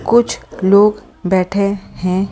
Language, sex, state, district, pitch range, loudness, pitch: Hindi, female, Delhi, New Delhi, 185-205 Hz, -15 LUFS, 200 Hz